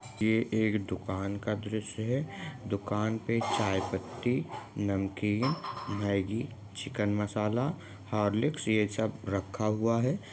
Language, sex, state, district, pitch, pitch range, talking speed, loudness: Hindi, male, Jharkhand, Sahebganj, 110 Hz, 100-120 Hz, 115 wpm, -32 LUFS